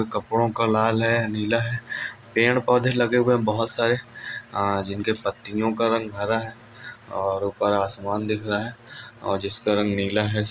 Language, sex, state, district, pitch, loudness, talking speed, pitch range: Hindi, male, Andhra Pradesh, Anantapur, 110 Hz, -23 LUFS, 125 wpm, 105-115 Hz